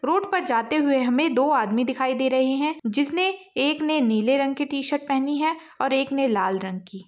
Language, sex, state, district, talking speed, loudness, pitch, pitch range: Hindi, female, Bihar, Saharsa, 210 wpm, -23 LUFS, 275 Hz, 255-300 Hz